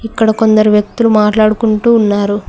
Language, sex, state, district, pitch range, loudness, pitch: Telugu, female, Telangana, Mahabubabad, 210-225 Hz, -11 LUFS, 215 Hz